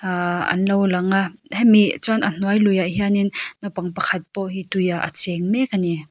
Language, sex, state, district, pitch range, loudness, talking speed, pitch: Mizo, female, Mizoram, Aizawl, 180-200 Hz, -19 LUFS, 185 wpm, 190 Hz